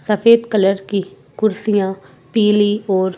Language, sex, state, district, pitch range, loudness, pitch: Hindi, female, Madhya Pradesh, Bhopal, 190-210 Hz, -16 LUFS, 200 Hz